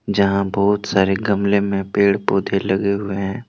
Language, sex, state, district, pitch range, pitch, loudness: Hindi, male, Jharkhand, Deoghar, 95-100 Hz, 100 Hz, -18 LUFS